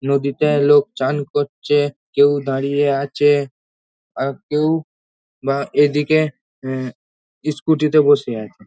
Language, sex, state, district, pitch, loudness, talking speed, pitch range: Bengali, male, West Bengal, North 24 Parganas, 140 Hz, -18 LUFS, 95 wpm, 135-145 Hz